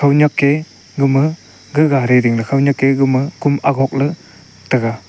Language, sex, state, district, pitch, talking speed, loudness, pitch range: Wancho, male, Arunachal Pradesh, Longding, 140 Hz, 130 wpm, -15 LUFS, 125-145 Hz